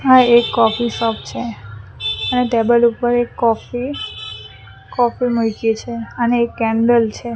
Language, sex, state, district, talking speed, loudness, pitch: Gujarati, female, Gujarat, Valsad, 140 wpm, -17 LUFS, 230 Hz